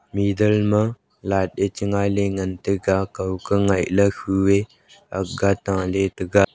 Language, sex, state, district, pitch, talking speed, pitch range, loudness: Wancho, male, Arunachal Pradesh, Longding, 100 Hz, 130 wpm, 95-100 Hz, -21 LUFS